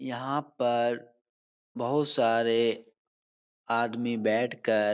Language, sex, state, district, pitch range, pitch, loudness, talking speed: Hindi, male, Bihar, Supaul, 115-120 Hz, 120 Hz, -28 LUFS, 95 wpm